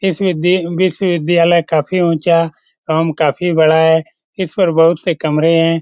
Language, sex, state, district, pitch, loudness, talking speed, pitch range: Hindi, male, Bihar, Lakhisarai, 170 Hz, -14 LUFS, 155 wpm, 160-180 Hz